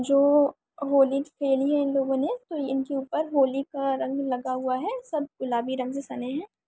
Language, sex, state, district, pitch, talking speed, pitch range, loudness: Hindi, female, Chhattisgarh, Jashpur, 275 Hz, 205 wpm, 270-290 Hz, -26 LUFS